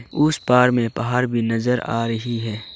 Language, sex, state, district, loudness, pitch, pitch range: Hindi, male, Arunachal Pradesh, Longding, -20 LUFS, 120 Hz, 115-125 Hz